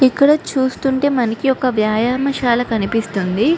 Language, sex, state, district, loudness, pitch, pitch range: Telugu, female, Andhra Pradesh, Chittoor, -17 LUFS, 255 Hz, 225-270 Hz